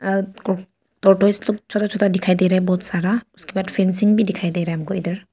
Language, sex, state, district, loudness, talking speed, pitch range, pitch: Hindi, female, Arunachal Pradesh, Papum Pare, -20 LUFS, 235 wpm, 185-205 Hz, 195 Hz